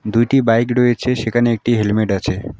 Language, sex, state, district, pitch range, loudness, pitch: Bengali, female, West Bengal, Alipurduar, 110-120 Hz, -16 LUFS, 115 Hz